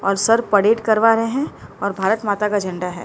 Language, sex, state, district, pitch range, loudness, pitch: Hindi, male, Maharashtra, Mumbai Suburban, 195-225 Hz, -18 LUFS, 205 Hz